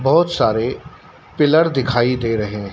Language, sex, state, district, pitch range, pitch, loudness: Hindi, male, Madhya Pradesh, Dhar, 110-140 Hz, 120 Hz, -17 LUFS